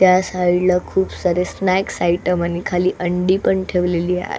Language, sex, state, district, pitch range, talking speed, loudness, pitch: Marathi, female, Maharashtra, Solapur, 180-185 Hz, 190 wpm, -18 LUFS, 180 Hz